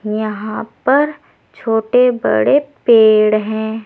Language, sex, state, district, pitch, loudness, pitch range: Hindi, female, Uttar Pradesh, Saharanpur, 220 Hz, -14 LUFS, 215-250 Hz